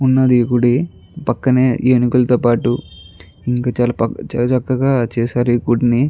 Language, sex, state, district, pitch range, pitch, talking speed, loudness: Telugu, male, Andhra Pradesh, Guntur, 120-130 Hz, 120 Hz, 110 wpm, -16 LUFS